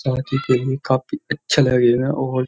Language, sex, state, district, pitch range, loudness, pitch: Hindi, male, Uttar Pradesh, Jyotiba Phule Nagar, 130-135 Hz, -19 LUFS, 130 Hz